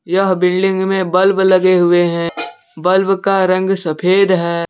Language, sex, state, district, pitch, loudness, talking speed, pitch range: Hindi, male, Jharkhand, Deoghar, 185 Hz, -14 LUFS, 155 wpm, 175-190 Hz